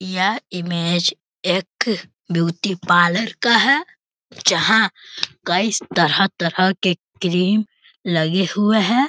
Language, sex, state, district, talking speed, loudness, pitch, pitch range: Hindi, male, Bihar, Bhagalpur, 105 wpm, -18 LUFS, 190 Hz, 175-215 Hz